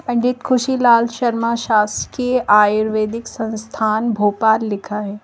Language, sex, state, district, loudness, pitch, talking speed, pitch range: Hindi, female, Madhya Pradesh, Bhopal, -17 LUFS, 225 Hz, 105 wpm, 215-240 Hz